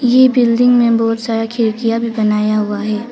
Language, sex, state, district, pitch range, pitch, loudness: Hindi, female, Arunachal Pradesh, Papum Pare, 215-240 Hz, 225 Hz, -14 LUFS